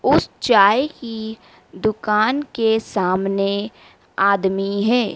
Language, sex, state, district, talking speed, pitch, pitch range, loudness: Hindi, female, Madhya Pradesh, Dhar, 95 wpm, 215 Hz, 195-230 Hz, -19 LUFS